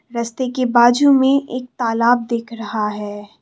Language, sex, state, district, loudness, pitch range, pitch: Hindi, female, Assam, Kamrup Metropolitan, -17 LUFS, 230-250 Hz, 240 Hz